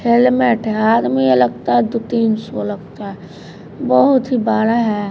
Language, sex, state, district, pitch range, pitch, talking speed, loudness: Hindi, female, Bihar, Patna, 185-235 Hz, 215 Hz, 165 wpm, -15 LUFS